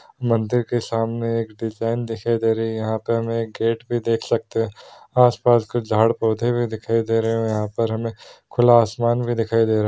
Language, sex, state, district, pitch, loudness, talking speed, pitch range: Hindi, male, Bihar, Saran, 115 Hz, -21 LUFS, 255 wpm, 115-120 Hz